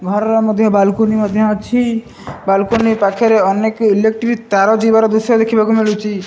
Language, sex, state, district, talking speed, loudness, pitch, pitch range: Odia, male, Odisha, Malkangiri, 135 wpm, -13 LUFS, 220 Hz, 210-225 Hz